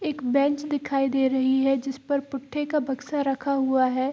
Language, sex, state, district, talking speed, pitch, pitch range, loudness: Hindi, female, Bihar, Gopalganj, 190 wpm, 275 Hz, 265-285 Hz, -25 LUFS